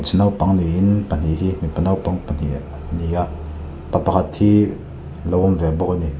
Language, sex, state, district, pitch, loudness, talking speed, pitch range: Mizo, male, Mizoram, Aizawl, 85 Hz, -19 LUFS, 185 wpm, 75-95 Hz